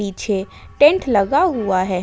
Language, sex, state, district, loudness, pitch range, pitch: Hindi, female, Jharkhand, Ranchi, -17 LUFS, 190-290 Hz, 205 Hz